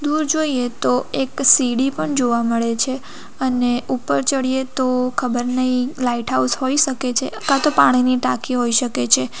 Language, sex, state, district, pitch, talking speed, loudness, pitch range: Gujarati, female, Gujarat, Valsad, 255 Hz, 170 wpm, -18 LUFS, 245-265 Hz